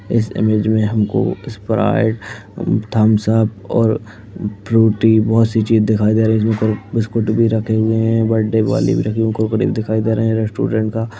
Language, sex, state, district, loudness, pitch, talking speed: Hindi, male, Uttarakhand, Uttarkashi, -16 LUFS, 110 Hz, 195 wpm